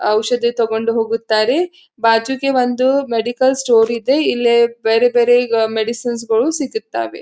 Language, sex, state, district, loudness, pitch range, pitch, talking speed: Kannada, female, Karnataka, Belgaum, -16 LUFS, 225-250 Hz, 235 Hz, 125 wpm